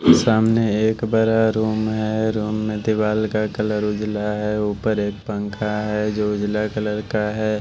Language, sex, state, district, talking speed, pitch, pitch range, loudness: Hindi, male, Bihar, West Champaran, 165 wpm, 105 Hz, 105-110 Hz, -21 LUFS